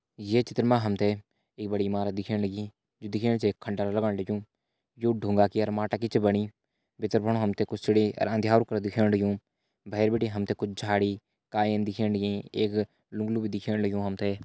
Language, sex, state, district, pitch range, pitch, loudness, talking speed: Hindi, male, Uttarakhand, Uttarkashi, 100-110 Hz, 105 Hz, -28 LUFS, 195 wpm